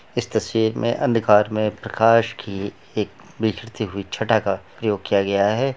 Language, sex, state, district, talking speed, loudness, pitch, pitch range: Hindi, male, Bihar, Gopalganj, 165 wpm, -21 LUFS, 110 Hz, 100-115 Hz